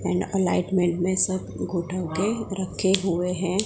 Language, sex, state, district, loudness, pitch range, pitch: Hindi, female, Gujarat, Gandhinagar, -25 LUFS, 180-190 Hz, 185 Hz